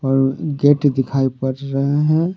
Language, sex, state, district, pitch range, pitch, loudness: Hindi, male, Jharkhand, Deoghar, 135-145 Hz, 140 Hz, -18 LUFS